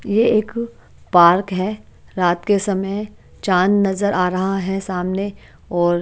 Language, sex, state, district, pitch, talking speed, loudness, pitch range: Hindi, female, Chandigarh, Chandigarh, 195 Hz, 140 wpm, -18 LUFS, 180-205 Hz